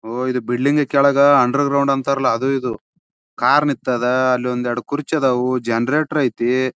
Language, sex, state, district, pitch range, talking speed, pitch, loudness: Kannada, male, Karnataka, Bijapur, 125-140 Hz, 140 wpm, 130 Hz, -18 LUFS